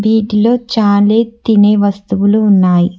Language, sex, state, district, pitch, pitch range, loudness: Telugu, female, Telangana, Hyderabad, 210 Hz, 200-220 Hz, -11 LUFS